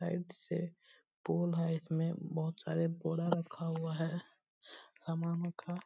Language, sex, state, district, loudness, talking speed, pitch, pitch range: Hindi, male, Bihar, Purnia, -38 LUFS, 135 wpm, 170 Hz, 165-175 Hz